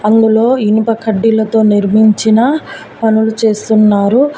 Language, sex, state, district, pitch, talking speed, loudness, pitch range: Telugu, female, Telangana, Mahabubabad, 220 Hz, 80 wpm, -11 LUFS, 215-225 Hz